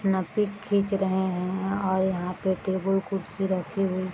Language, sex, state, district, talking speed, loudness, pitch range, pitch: Hindi, female, Bihar, Sitamarhi, 190 wpm, -27 LUFS, 185-195 Hz, 190 Hz